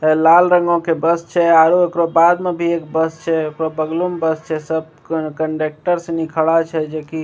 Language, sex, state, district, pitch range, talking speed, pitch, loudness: Maithili, male, Bihar, Begusarai, 160-170 Hz, 230 wpm, 160 Hz, -16 LUFS